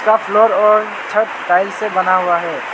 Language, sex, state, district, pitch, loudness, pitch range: Hindi, male, Arunachal Pradesh, Lower Dibang Valley, 210 Hz, -14 LUFS, 180-215 Hz